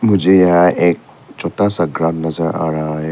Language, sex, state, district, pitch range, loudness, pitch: Hindi, male, Arunachal Pradesh, Papum Pare, 80-90 Hz, -15 LUFS, 85 Hz